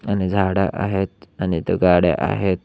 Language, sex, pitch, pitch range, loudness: Marathi, male, 95 Hz, 90-100 Hz, -20 LUFS